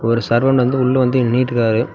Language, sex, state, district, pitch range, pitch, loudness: Tamil, male, Tamil Nadu, Namakkal, 115-130 Hz, 125 Hz, -15 LUFS